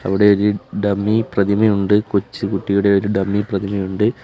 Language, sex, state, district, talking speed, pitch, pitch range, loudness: Malayalam, male, Kerala, Kollam, 125 wpm, 100 Hz, 100-105 Hz, -17 LUFS